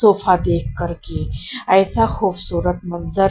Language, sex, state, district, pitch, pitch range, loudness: Hindi, female, Punjab, Kapurthala, 190 Hz, 180-195 Hz, -19 LUFS